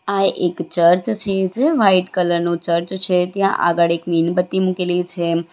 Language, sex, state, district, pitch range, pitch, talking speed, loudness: Gujarati, female, Gujarat, Valsad, 170-190 Hz, 180 Hz, 175 wpm, -18 LUFS